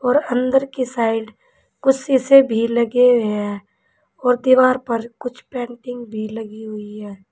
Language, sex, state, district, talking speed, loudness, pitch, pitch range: Hindi, female, Uttar Pradesh, Saharanpur, 155 wpm, -18 LUFS, 240 Hz, 220-255 Hz